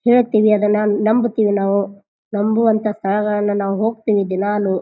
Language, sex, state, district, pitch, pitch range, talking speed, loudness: Kannada, female, Karnataka, Bijapur, 210 Hz, 200-215 Hz, 110 wpm, -17 LUFS